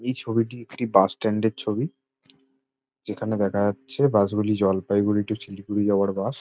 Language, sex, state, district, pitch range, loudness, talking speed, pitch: Bengali, male, West Bengal, Jalpaiguri, 100-130 Hz, -24 LUFS, 170 wpm, 110 Hz